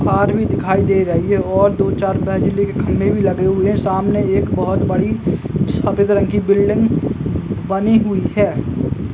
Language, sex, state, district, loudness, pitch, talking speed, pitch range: Hindi, male, Uttar Pradesh, Muzaffarnagar, -16 LUFS, 200 Hz, 165 wpm, 190-205 Hz